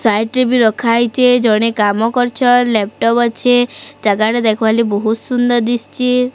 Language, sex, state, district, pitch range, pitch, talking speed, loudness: Odia, female, Odisha, Sambalpur, 220-245 Hz, 235 Hz, 150 wpm, -14 LUFS